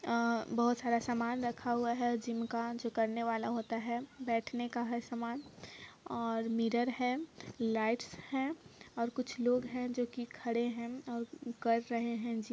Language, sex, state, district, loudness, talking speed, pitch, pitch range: Hindi, female, Jharkhand, Sahebganj, -36 LUFS, 145 wpm, 235 Hz, 230-245 Hz